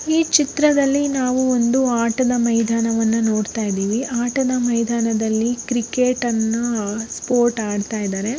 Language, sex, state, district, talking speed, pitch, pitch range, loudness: Kannada, female, Karnataka, Bellary, 100 wpm, 235 Hz, 225-255 Hz, -19 LUFS